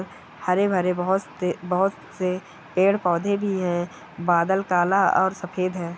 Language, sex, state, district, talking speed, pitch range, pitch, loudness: Hindi, male, Bihar, Kishanganj, 130 wpm, 180-190 Hz, 185 Hz, -23 LUFS